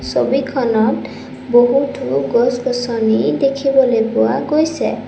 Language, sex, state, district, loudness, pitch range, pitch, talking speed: Assamese, female, Assam, Sonitpur, -16 LUFS, 230-270 Hz, 250 Hz, 70 wpm